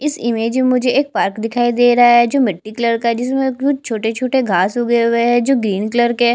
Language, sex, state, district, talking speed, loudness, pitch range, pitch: Hindi, female, Chhattisgarh, Jashpur, 245 wpm, -15 LUFS, 230-255 Hz, 240 Hz